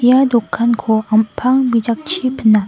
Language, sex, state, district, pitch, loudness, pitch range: Garo, female, Meghalaya, West Garo Hills, 235 Hz, -15 LUFS, 220-255 Hz